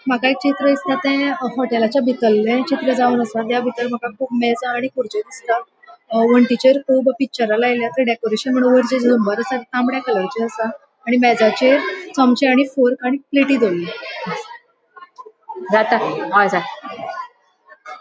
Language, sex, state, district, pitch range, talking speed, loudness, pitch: Konkani, female, Goa, North and South Goa, 235-275 Hz, 115 wpm, -17 LUFS, 255 Hz